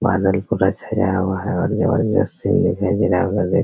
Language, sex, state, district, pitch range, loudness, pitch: Hindi, male, Bihar, Araria, 95-105 Hz, -19 LUFS, 95 Hz